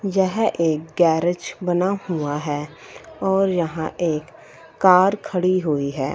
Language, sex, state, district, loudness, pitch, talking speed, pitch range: Hindi, female, Punjab, Fazilka, -21 LUFS, 175 Hz, 125 wpm, 155-190 Hz